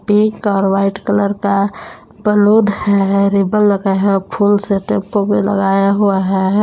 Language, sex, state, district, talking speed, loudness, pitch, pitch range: Hindi, female, Jharkhand, Palamu, 155 wpm, -14 LUFS, 200 Hz, 195-205 Hz